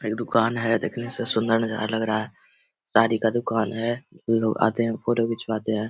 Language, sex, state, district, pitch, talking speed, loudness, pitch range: Hindi, male, Bihar, Vaishali, 115 Hz, 205 wpm, -24 LUFS, 110-115 Hz